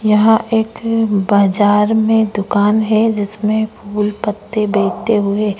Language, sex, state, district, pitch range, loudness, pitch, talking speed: Hindi, female, Maharashtra, Chandrapur, 205-220 Hz, -15 LUFS, 210 Hz, 130 wpm